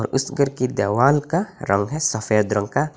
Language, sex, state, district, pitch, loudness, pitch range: Hindi, male, Assam, Hailakandi, 135 Hz, -20 LUFS, 105-145 Hz